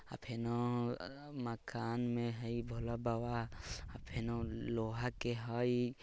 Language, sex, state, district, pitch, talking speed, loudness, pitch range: Bajjika, male, Bihar, Vaishali, 120 Hz, 130 wpm, -40 LUFS, 115-120 Hz